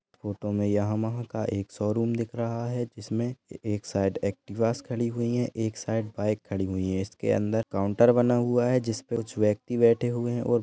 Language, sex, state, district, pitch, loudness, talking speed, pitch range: Hindi, male, Maharashtra, Chandrapur, 115 Hz, -27 LUFS, 205 wpm, 105-120 Hz